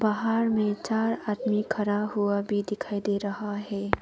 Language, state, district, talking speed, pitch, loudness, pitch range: Hindi, Arunachal Pradesh, Papum Pare, 165 wpm, 210 Hz, -28 LUFS, 205-215 Hz